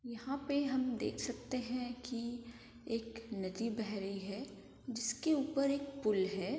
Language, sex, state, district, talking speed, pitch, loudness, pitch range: Hindi, female, Uttar Pradesh, Varanasi, 155 wpm, 240 Hz, -38 LUFS, 225-275 Hz